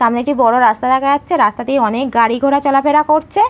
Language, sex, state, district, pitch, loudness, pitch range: Bengali, female, West Bengal, Malda, 275 Hz, -13 LUFS, 240-295 Hz